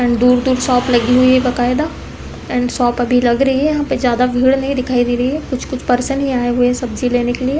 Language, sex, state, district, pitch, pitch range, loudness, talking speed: Hindi, female, Uttar Pradesh, Deoria, 250 Hz, 245-260 Hz, -15 LUFS, 250 wpm